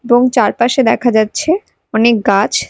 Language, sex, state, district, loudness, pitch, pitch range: Bengali, female, Odisha, Malkangiri, -13 LUFS, 235 Hz, 220-255 Hz